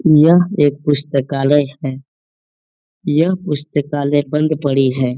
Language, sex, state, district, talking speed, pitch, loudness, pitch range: Hindi, male, Bihar, Jamui, 105 wpm, 145 Hz, -16 LUFS, 140-155 Hz